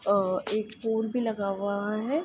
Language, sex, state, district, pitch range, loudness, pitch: Hindi, female, Uttar Pradesh, Ghazipur, 200-225 Hz, -29 LUFS, 215 Hz